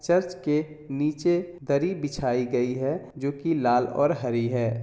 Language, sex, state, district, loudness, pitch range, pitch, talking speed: Hindi, male, Jharkhand, Jamtara, -26 LUFS, 125-165 Hz, 145 Hz, 160 wpm